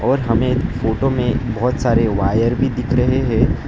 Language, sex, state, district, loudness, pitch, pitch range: Hindi, male, West Bengal, Alipurduar, -17 LUFS, 125 Hz, 115-130 Hz